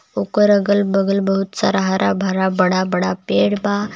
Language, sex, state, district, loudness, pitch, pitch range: Bhojpuri, male, Jharkhand, Palamu, -17 LUFS, 195 Hz, 185-205 Hz